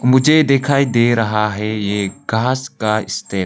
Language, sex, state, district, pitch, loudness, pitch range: Hindi, male, Arunachal Pradesh, Longding, 115 Hz, -16 LUFS, 105-130 Hz